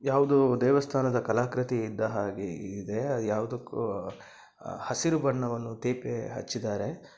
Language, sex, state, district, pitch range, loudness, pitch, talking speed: Kannada, male, Karnataka, Dakshina Kannada, 110-135 Hz, -29 LUFS, 125 Hz, 90 wpm